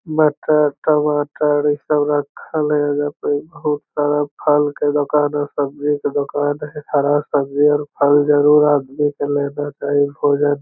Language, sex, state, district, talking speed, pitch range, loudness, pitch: Magahi, male, Bihar, Lakhisarai, 165 wpm, 145-150 Hz, -17 LUFS, 145 Hz